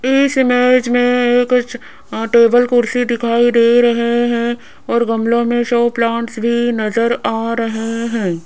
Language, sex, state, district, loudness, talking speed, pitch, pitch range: Hindi, female, Rajasthan, Jaipur, -14 LUFS, 150 wpm, 235 Hz, 230-245 Hz